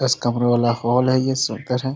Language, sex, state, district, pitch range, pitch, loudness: Hindi, male, Bihar, Sitamarhi, 120-130 Hz, 125 Hz, -19 LUFS